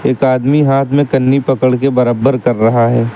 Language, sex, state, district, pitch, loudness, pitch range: Hindi, male, Uttar Pradesh, Lucknow, 130 Hz, -12 LUFS, 125-135 Hz